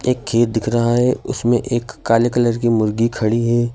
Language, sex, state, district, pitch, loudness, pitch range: Hindi, male, Madhya Pradesh, Bhopal, 120 Hz, -17 LUFS, 115-120 Hz